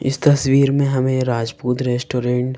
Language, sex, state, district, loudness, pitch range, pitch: Hindi, female, Madhya Pradesh, Bhopal, -18 LUFS, 125-135 Hz, 130 Hz